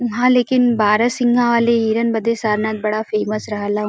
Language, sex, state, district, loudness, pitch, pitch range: Bhojpuri, female, Uttar Pradesh, Varanasi, -17 LUFS, 225 Hz, 215-240 Hz